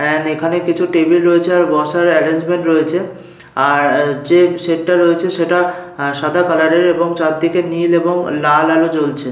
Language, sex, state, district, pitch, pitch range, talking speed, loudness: Bengali, male, Jharkhand, Sahebganj, 170 Hz, 155-175 Hz, 165 wpm, -14 LUFS